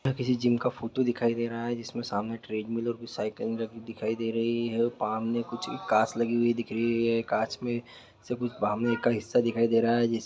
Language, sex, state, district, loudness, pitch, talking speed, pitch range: Hindi, male, Chhattisgarh, Balrampur, -29 LUFS, 115 Hz, 240 wpm, 115-120 Hz